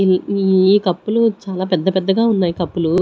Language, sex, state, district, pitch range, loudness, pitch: Telugu, female, Andhra Pradesh, Sri Satya Sai, 185-200 Hz, -16 LUFS, 190 Hz